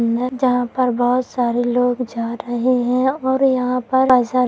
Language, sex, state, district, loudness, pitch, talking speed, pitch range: Hindi, female, Bihar, Gopalganj, -18 LUFS, 250 Hz, 185 wpm, 245-255 Hz